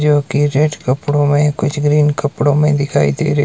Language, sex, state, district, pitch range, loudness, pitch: Hindi, male, Himachal Pradesh, Shimla, 145-150 Hz, -14 LUFS, 145 Hz